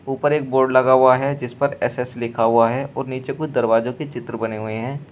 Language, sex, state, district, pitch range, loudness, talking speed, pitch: Hindi, male, Uttar Pradesh, Shamli, 115-135 Hz, -20 LUFS, 245 wpm, 130 Hz